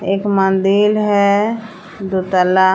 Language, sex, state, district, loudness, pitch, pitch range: Hindi, female, Jharkhand, Palamu, -15 LUFS, 195 Hz, 190-205 Hz